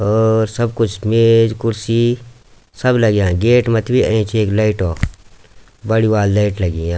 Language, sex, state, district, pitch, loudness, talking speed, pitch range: Garhwali, male, Uttarakhand, Tehri Garhwal, 110 Hz, -15 LUFS, 155 wpm, 100-115 Hz